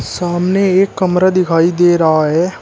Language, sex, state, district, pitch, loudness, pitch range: Hindi, male, Uttar Pradesh, Shamli, 180 Hz, -13 LUFS, 170-185 Hz